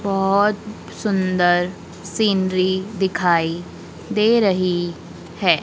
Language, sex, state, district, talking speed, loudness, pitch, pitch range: Hindi, female, Madhya Pradesh, Dhar, 75 wpm, -19 LUFS, 185 Hz, 175-205 Hz